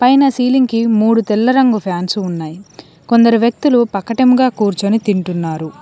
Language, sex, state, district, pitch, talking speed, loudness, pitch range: Telugu, female, Telangana, Komaram Bheem, 225 Hz, 135 wpm, -14 LUFS, 195-250 Hz